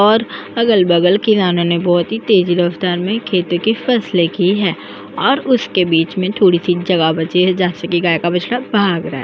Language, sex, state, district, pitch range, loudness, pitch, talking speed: Hindi, female, Maharashtra, Aurangabad, 175-215 Hz, -15 LUFS, 180 Hz, 215 wpm